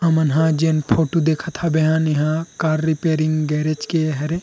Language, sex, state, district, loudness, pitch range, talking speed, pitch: Chhattisgarhi, male, Chhattisgarh, Rajnandgaon, -19 LUFS, 155-160 Hz, 175 wpm, 160 Hz